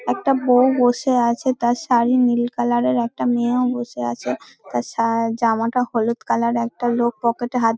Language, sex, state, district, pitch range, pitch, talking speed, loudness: Bengali, female, West Bengal, Dakshin Dinajpur, 230-245 Hz, 240 Hz, 195 wpm, -19 LUFS